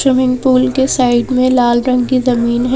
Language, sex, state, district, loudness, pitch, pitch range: Hindi, female, Madhya Pradesh, Bhopal, -13 LUFS, 255 Hz, 245-255 Hz